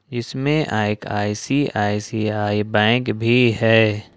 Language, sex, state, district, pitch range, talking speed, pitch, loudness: Hindi, male, Jharkhand, Ranchi, 105-120 Hz, 85 wpm, 110 Hz, -19 LUFS